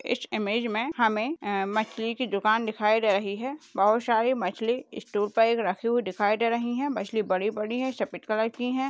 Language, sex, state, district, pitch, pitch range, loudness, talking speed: Hindi, female, Rajasthan, Nagaur, 225 Hz, 210-240 Hz, -27 LUFS, 195 wpm